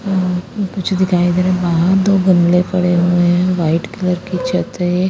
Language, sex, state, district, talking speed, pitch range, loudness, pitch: Hindi, female, Chandigarh, Chandigarh, 200 wpm, 175-185 Hz, -15 LUFS, 180 Hz